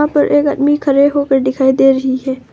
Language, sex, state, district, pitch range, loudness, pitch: Hindi, female, Arunachal Pradesh, Longding, 265-290 Hz, -13 LUFS, 275 Hz